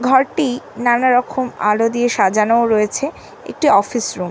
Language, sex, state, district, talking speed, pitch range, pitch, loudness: Bengali, female, West Bengal, North 24 Parganas, 155 wpm, 215-260 Hz, 240 Hz, -16 LUFS